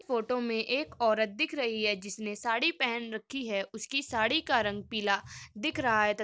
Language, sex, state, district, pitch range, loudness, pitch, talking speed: Hindi, female, Uttar Pradesh, Muzaffarnagar, 215-255 Hz, -30 LUFS, 225 Hz, 220 wpm